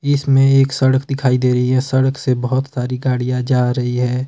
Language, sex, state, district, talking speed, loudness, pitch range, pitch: Hindi, male, Himachal Pradesh, Shimla, 210 wpm, -16 LUFS, 125-135 Hz, 130 Hz